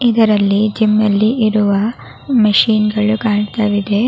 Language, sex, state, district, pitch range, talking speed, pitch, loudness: Kannada, female, Karnataka, Raichur, 210-220 Hz, 115 wpm, 215 Hz, -14 LUFS